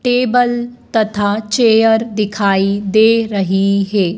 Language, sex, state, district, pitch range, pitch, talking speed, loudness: Hindi, female, Madhya Pradesh, Dhar, 200-230 Hz, 215 Hz, 100 wpm, -14 LUFS